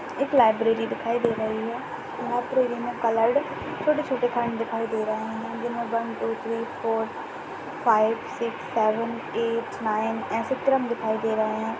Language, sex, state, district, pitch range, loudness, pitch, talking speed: Hindi, female, Bihar, Begusarai, 225-240 Hz, -26 LUFS, 230 Hz, 150 wpm